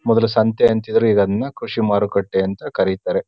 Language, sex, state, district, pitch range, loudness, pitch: Kannada, male, Karnataka, Chamarajanagar, 100-115 Hz, -18 LUFS, 110 Hz